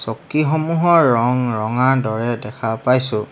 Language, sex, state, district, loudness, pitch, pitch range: Assamese, male, Assam, Hailakandi, -17 LUFS, 125 Hz, 110-135 Hz